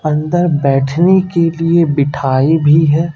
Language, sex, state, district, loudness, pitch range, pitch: Hindi, male, Bihar, Katihar, -12 LUFS, 145-170 Hz, 155 Hz